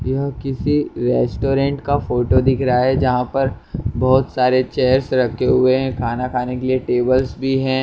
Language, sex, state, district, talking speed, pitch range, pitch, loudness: Hindi, male, Maharashtra, Mumbai Suburban, 175 wpm, 125-135 Hz, 130 Hz, -18 LUFS